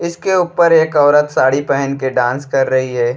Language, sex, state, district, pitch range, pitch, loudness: Bhojpuri, male, Uttar Pradesh, Deoria, 130-160 Hz, 140 Hz, -14 LUFS